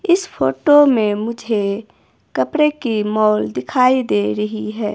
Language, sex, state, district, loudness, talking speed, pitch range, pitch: Hindi, female, Himachal Pradesh, Shimla, -17 LUFS, 135 wpm, 205-260 Hz, 215 Hz